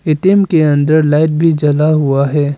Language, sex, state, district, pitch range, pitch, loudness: Hindi, male, Arunachal Pradesh, Papum Pare, 145-160 Hz, 155 Hz, -12 LUFS